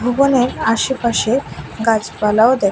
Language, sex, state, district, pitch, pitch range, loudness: Bengali, female, Tripura, West Tripura, 230 Hz, 220-255 Hz, -16 LUFS